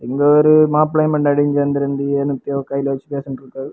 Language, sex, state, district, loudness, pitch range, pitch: Tamil, male, Tamil Nadu, Kanyakumari, -16 LUFS, 140-145 Hz, 140 Hz